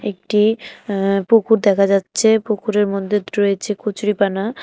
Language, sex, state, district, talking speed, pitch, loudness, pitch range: Bengali, female, Tripura, West Tripura, 115 wpm, 210 Hz, -17 LUFS, 195-215 Hz